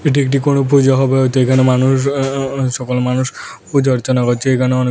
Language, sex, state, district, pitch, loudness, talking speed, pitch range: Bengali, male, Tripura, West Tripura, 130 Hz, -14 LUFS, 195 wpm, 130-135 Hz